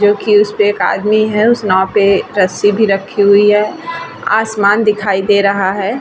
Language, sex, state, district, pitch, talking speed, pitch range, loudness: Hindi, female, Bihar, Vaishali, 205 Hz, 210 wpm, 200-215 Hz, -12 LUFS